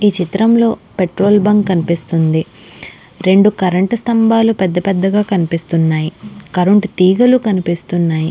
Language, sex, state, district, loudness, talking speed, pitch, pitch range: Telugu, female, Andhra Pradesh, Krishna, -13 LUFS, 110 wpm, 190 Hz, 170-210 Hz